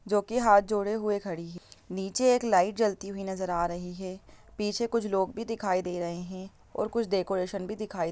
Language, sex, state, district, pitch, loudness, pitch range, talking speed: Hindi, female, Bihar, Lakhisarai, 195 Hz, -29 LUFS, 185-215 Hz, 245 wpm